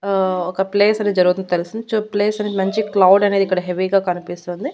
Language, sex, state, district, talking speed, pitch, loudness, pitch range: Telugu, female, Andhra Pradesh, Annamaya, 205 wpm, 195 Hz, -18 LUFS, 185-205 Hz